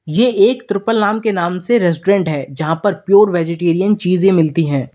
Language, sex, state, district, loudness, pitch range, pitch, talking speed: Hindi, male, Uttar Pradesh, Lalitpur, -14 LUFS, 165-205 Hz, 185 Hz, 195 wpm